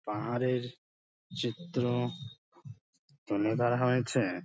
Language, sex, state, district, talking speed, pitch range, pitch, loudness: Bengali, male, West Bengal, Dakshin Dinajpur, 65 wpm, 115-125 Hz, 120 Hz, -32 LUFS